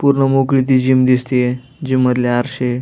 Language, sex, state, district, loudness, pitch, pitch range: Marathi, male, Maharashtra, Aurangabad, -15 LUFS, 130 Hz, 125-135 Hz